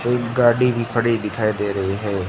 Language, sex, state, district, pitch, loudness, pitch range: Hindi, male, Gujarat, Gandhinagar, 115 Hz, -20 LUFS, 105-120 Hz